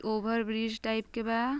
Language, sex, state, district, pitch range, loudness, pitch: Bhojpuri, female, Uttar Pradesh, Ghazipur, 220-230 Hz, -32 LUFS, 225 Hz